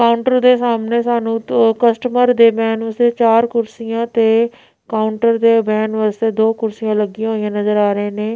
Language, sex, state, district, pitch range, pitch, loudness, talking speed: Punjabi, female, Punjab, Pathankot, 220-235 Hz, 225 Hz, -15 LUFS, 170 wpm